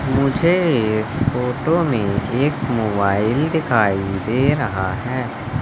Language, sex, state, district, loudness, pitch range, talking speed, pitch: Hindi, male, Madhya Pradesh, Katni, -19 LUFS, 110-140 Hz, 105 wpm, 125 Hz